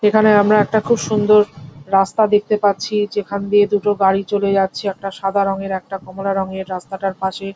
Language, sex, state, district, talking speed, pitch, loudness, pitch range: Bengali, female, West Bengal, Jhargram, 180 wpm, 195 Hz, -17 LUFS, 195-210 Hz